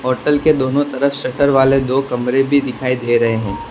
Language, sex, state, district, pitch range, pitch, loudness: Hindi, male, Gujarat, Valsad, 125-140 Hz, 130 Hz, -16 LUFS